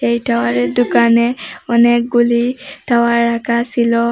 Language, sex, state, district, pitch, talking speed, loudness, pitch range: Bengali, female, Assam, Hailakandi, 235 Hz, 100 wpm, -14 LUFS, 190-240 Hz